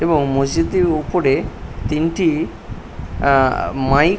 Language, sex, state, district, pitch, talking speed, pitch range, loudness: Bengali, male, West Bengal, Paschim Medinipur, 140 Hz, 100 wpm, 110-165 Hz, -18 LUFS